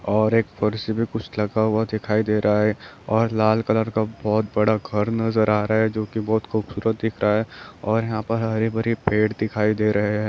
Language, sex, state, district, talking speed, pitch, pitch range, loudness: Hindi, male, Chhattisgarh, Bilaspur, 180 wpm, 110 Hz, 105-110 Hz, -22 LUFS